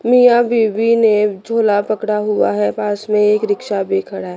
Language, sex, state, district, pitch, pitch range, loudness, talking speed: Hindi, female, Chandigarh, Chandigarh, 210 Hz, 200-225 Hz, -15 LUFS, 180 wpm